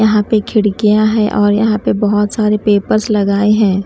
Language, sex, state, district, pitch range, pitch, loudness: Hindi, female, Himachal Pradesh, Shimla, 205-215 Hz, 210 Hz, -13 LUFS